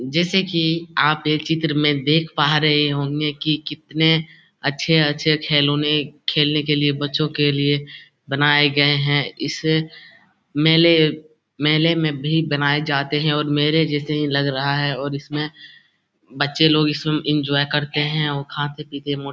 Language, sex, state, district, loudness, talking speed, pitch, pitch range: Hindi, male, Bihar, Lakhisarai, -19 LUFS, 150 wpm, 150 Hz, 145-155 Hz